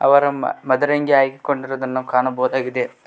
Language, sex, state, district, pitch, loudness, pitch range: Kannada, male, Karnataka, Koppal, 135 Hz, -19 LUFS, 130-140 Hz